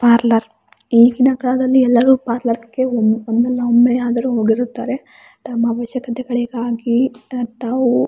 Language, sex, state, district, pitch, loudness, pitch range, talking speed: Kannada, female, Karnataka, Raichur, 240 Hz, -16 LUFS, 235-250 Hz, 110 wpm